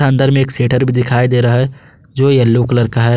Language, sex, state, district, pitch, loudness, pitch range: Hindi, male, Jharkhand, Garhwa, 125 Hz, -13 LUFS, 120-135 Hz